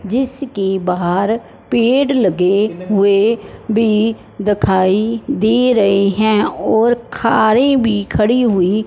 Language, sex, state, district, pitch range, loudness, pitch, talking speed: Hindi, male, Punjab, Fazilka, 200-235 Hz, -15 LUFS, 215 Hz, 100 wpm